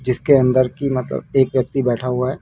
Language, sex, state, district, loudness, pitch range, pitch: Hindi, male, Rajasthan, Jaipur, -18 LUFS, 125-135 Hz, 130 Hz